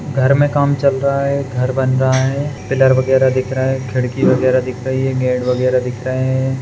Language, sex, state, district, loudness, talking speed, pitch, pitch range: Hindi, male, Bihar, Madhepura, -16 LUFS, 225 wpm, 130 Hz, 130-135 Hz